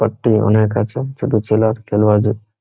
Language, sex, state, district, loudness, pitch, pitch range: Bengali, male, West Bengal, Jhargram, -16 LUFS, 110 Hz, 105-110 Hz